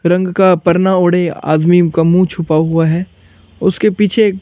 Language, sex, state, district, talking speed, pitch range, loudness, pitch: Hindi, male, Chandigarh, Chandigarh, 165 wpm, 165-185 Hz, -12 LUFS, 175 Hz